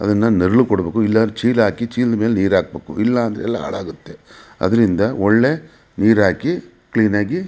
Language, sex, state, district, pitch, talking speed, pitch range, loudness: Kannada, male, Karnataka, Mysore, 110 Hz, 160 wpm, 105-120 Hz, -17 LUFS